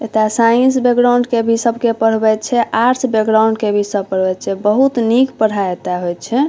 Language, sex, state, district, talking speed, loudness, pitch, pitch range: Maithili, female, Bihar, Saharsa, 195 wpm, -14 LUFS, 225 Hz, 210-245 Hz